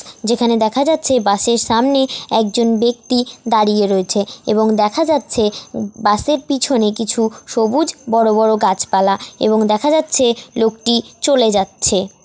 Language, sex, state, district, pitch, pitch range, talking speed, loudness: Bengali, female, West Bengal, Dakshin Dinajpur, 225 Hz, 215-250 Hz, 120 wpm, -15 LUFS